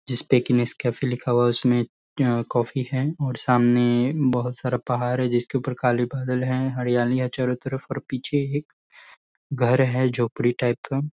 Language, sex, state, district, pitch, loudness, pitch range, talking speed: Hindi, male, Bihar, Sitamarhi, 125 Hz, -23 LUFS, 120-130 Hz, 160 wpm